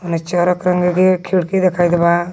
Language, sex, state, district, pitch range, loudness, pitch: Magahi, female, Jharkhand, Palamu, 175-180 Hz, -15 LUFS, 180 Hz